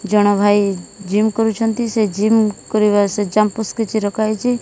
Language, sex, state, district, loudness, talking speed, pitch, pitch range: Odia, female, Odisha, Malkangiri, -17 LUFS, 155 wpm, 215 Hz, 205-220 Hz